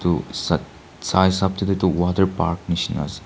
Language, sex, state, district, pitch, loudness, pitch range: Nagamese, male, Nagaland, Kohima, 95 Hz, -21 LUFS, 90-95 Hz